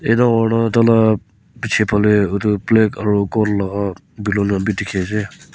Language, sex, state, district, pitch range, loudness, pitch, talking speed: Nagamese, male, Nagaland, Kohima, 100-115 Hz, -17 LUFS, 105 Hz, 160 wpm